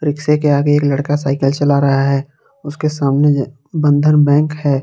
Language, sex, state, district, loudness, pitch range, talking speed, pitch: Hindi, male, Jharkhand, Palamu, -14 LUFS, 140-150 Hz, 175 wpm, 145 Hz